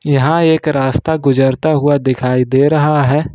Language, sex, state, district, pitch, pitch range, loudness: Hindi, male, Jharkhand, Ranchi, 145 Hz, 135-155 Hz, -13 LUFS